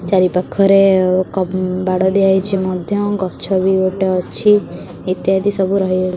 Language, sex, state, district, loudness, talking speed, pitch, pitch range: Odia, female, Odisha, Khordha, -15 LUFS, 125 wpm, 190 Hz, 185-195 Hz